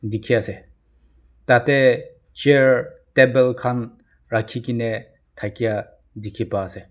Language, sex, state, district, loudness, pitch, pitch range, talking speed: Nagamese, male, Nagaland, Dimapur, -20 LUFS, 115 Hz, 105-130 Hz, 105 wpm